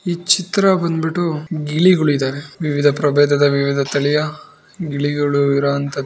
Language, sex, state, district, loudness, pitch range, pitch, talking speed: Kannada, female, Karnataka, Bijapur, -17 LUFS, 140-170 Hz, 150 Hz, 110 wpm